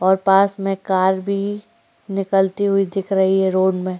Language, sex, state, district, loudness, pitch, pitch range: Hindi, female, Chhattisgarh, Korba, -18 LUFS, 195 Hz, 190-195 Hz